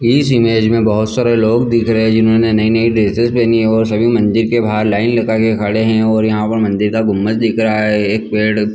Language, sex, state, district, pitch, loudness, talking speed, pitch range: Hindi, male, Chhattisgarh, Bilaspur, 110 Hz, -13 LUFS, 240 wpm, 110-115 Hz